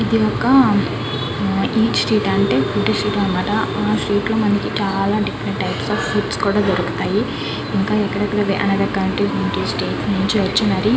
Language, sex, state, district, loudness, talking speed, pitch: Telugu, female, Andhra Pradesh, Krishna, -18 LUFS, 105 wpm, 195 Hz